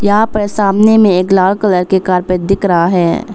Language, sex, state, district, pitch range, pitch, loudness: Hindi, female, Arunachal Pradesh, Papum Pare, 180-210 Hz, 195 Hz, -11 LUFS